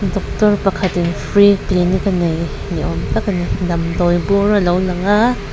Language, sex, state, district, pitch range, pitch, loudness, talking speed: Mizo, female, Mizoram, Aizawl, 175-200 Hz, 185 Hz, -16 LUFS, 185 wpm